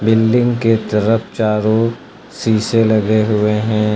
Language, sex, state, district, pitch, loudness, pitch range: Hindi, male, Uttar Pradesh, Lucknow, 110 Hz, -15 LUFS, 105-115 Hz